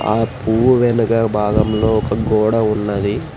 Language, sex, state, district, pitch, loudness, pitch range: Telugu, male, Telangana, Hyderabad, 110 Hz, -16 LUFS, 105-115 Hz